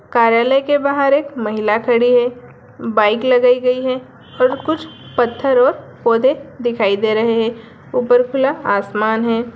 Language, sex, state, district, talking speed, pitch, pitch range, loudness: Hindi, female, Bihar, Sitamarhi, 150 wpm, 245 Hz, 225-265 Hz, -16 LUFS